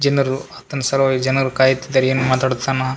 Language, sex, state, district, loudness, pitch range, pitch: Kannada, male, Karnataka, Raichur, -18 LUFS, 130-135 Hz, 130 Hz